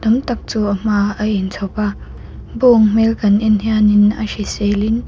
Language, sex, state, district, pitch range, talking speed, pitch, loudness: Mizo, female, Mizoram, Aizawl, 205-220 Hz, 215 wpm, 215 Hz, -15 LUFS